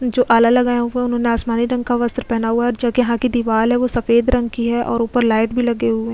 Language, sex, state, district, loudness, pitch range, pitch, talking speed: Hindi, female, Goa, North and South Goa, -17 LUFS, 230-245 Hz, 240 Hz, 295 wpm